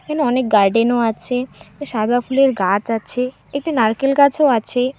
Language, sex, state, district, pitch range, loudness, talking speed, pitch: Bengali, female, West Bengal, Alipurduar, 225-275 Hz, -17 LUFS, 155 wpm, 250 Hz